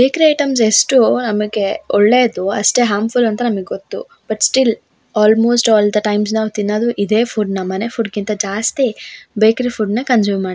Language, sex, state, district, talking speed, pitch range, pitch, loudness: Kannada, female, Karnataka, Shimoga, 155 wpm, 210-245 Hz, 220 Hz, -15 LUFS